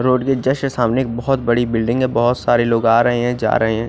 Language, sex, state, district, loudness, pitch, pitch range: Hindi, male, Odisha, Khordha, -17 LUFS, 120 Hz, 115-130 Hz